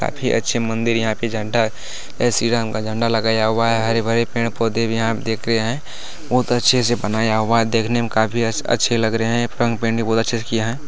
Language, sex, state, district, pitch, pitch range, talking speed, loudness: Hindi, male, Bihar, Kishanganj, 115 Hz, 110-115 Hz, 255 wpm, -19 LUFS